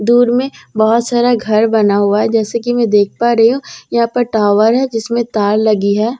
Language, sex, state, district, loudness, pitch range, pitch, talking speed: Hindi, female, Bihar, Katihar, -13 LUFS, 215-240 Hz, 225 Hz, 220 wpm